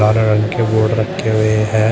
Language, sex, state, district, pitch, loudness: Hindi, male, Uttar Pradesh, Shamli, 110 Hz, -15 LUFS